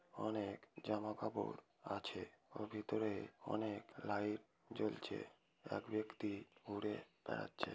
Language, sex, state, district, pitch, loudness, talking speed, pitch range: Bengali, female, West Bengal, Kolkata, 105 Hz, -46 LUFS, 95 wpm, 105-110 Hz